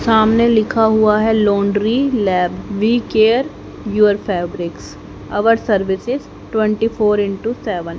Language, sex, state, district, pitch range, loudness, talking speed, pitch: Hindi, female, Haryana, Rohtak, 200-225 Hz, -16 LUFS, 115 wpm, 215 Hz